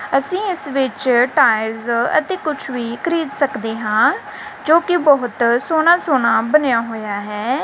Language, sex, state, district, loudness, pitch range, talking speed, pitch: Punjabi, female, Punjab, Kapurthala, -17 LUFS, 225-310 Hz, 135 wpm, 265 Hz